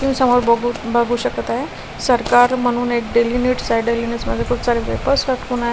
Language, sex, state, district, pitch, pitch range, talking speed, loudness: Marathi, female, Maharashtra, Washim, 240 Hz, 235-250 Hz, 190 wpm, -18 LUFS